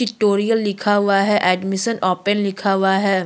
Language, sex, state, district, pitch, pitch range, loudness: Hindi, female, Chhattisgarh, Kabirdham, 200 Hz, 190-205 Hz, -18 LUFS